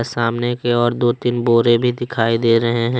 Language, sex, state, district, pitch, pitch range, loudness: Hindi, male, Jharkhand, Deoghar, 120 Hz, 115-120 Hz, -17 LUFS